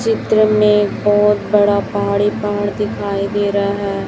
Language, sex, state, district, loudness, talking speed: Hindi, male, Chhattisgarh, Raipur, -15 LUFS, 160 wpm